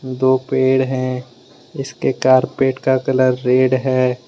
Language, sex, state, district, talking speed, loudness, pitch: Hindi, male, Jharkhand, Deoghar, 125 wpm, -16 LUFS, 130 Hz